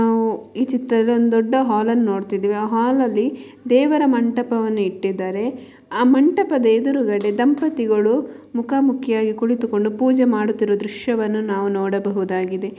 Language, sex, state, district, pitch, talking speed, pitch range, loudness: Kannada, female, Karnataka, Mysore, 225 Hz, 110 wpm, 210-250 Hz, -19 LUFS